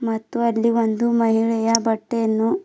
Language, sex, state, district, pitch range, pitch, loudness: Kannada, female, Karnataka, Bidar, 225-230 Hz, 230 Hz, -20 LUFS